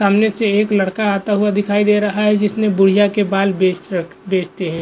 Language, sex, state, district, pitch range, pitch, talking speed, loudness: Hindi, male, Goa, North and South Goa, 195-210 Hz, 205 Hz, 225 wpm, -16 LUFS